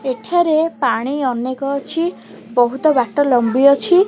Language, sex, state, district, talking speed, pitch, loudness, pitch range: Odia, female, Odisha, Khordha, 120 wpm, 275 Hz, -16 LUFS, 255-315 Hz